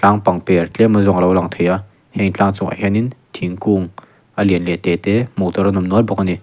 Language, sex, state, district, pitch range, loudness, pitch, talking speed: Mizo, male, Mizoram, Aizawl, 90-105 Hz, -16 LUFS, 100 Hz, 270 wpm